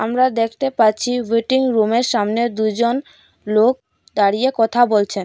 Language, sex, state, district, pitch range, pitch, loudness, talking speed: Bengali, female, Assam, Hailakandi, 220-245 Hz, 230 Hz, -17 LUFS, 115 wpm